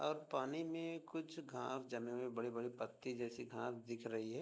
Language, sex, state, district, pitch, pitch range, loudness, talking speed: Hindi, male, Bihar, Begusarai, 125 Hz, 115-150 Hz, -46 LUFS, 190 wpm